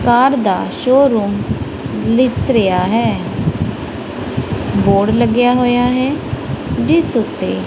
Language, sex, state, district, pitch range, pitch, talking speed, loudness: Punjabi, female, Punjab, Kapurthala, 215-255 Hz, 245 Hz, 100 wpm, -15 LUFS